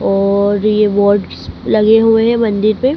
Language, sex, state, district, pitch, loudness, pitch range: Hindi, female, Madhya Pradesh, Dhar, 215 Hz, -12 LUFS, 205-225 Hz